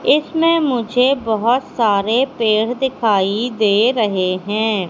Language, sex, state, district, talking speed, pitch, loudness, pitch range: Hindi, female, Madhya Pradesh, Katni, 110 wpm, 225 Hz, -16 LUFS, 210-260 Hz